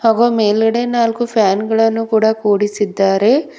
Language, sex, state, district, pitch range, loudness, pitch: Kannada, female, Karnataka, Bidar, 210-235 Hz, -14 LUFS, 225 Hz